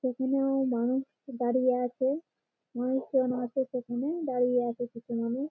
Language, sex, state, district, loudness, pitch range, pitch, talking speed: Bengali, female, West Bengal, Malda, -30 LUFS, 245-265 Hz, 255 Hz, 120 wpm